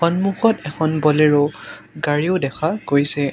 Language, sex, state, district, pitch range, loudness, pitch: Assamese, male, Assam, Sonitpur, 145-170 Hz, -18 LUFS, 155 Hz